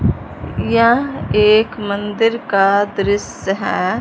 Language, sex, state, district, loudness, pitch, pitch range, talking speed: Hindi, male, Punjab, Fazilka, -16 LUFS, 205 Hz, 200-230 Hz, 90 wpm